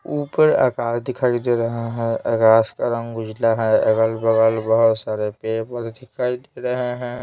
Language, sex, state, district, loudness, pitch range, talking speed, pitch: Hindi, male, Bihar, Patna, -20 LUFS, 110-125 Hz, 160 wpm, 115 Hz